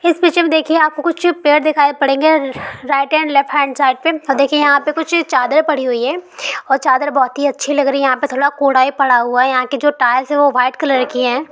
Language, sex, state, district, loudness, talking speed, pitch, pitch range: Hindi, female, Bihar, Sitamarhi, -14 LUFS, 270 wpm, 285 Hz, 260-310 Hz